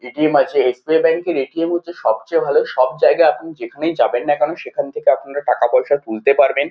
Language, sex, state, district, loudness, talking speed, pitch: Bengali, male, West Bengal, Kolkata, -17 LUFS, 205 wpm, 165 Hz